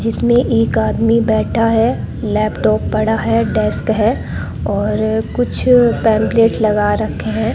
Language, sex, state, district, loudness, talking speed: Hindi, female, Rajasthan, Bikaner, -15 LUFS, 125 wpm